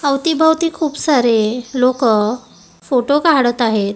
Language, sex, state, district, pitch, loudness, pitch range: Marathi, female, Maharashtra, Gondia, 255 Hz, -15 LUFS, 235-300 Hz